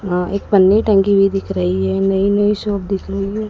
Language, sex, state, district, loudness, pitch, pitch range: Hindi, female, Madhya Pradesh, Dhar, -16 LUFS, 195 Hz, 190-200 Hz